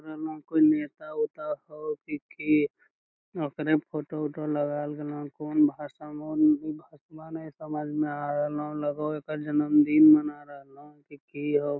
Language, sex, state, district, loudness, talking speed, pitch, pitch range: Magahi, male, Bihar, Lakhisarai, -27 LUFS, 170 wpm, 150 Hz, 145-155 Hz